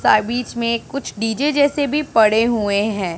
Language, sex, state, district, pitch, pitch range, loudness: Hindi, female, Punjab, Pathankot, 235 Hz, 215-275 Hz, -18 LUFS